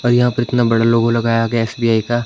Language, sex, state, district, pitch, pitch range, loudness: Hindi, male, Himachal Pradesh, Shimla, 115 Hz, 115-120 Hz, -15 LUFS